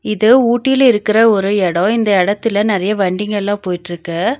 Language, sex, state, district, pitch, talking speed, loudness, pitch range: Tamil, female, Tamil Nadu, Nilgiris, 205 Hz, 135 wpm, -14 LUFS, 190-225 Hz